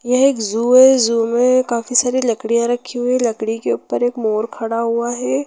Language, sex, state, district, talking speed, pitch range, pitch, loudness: Hindi, female, Chhattisgarh, Rajnandgaon, 210 wpm, 225-250 Hz, 235 Hz, -16 LUFS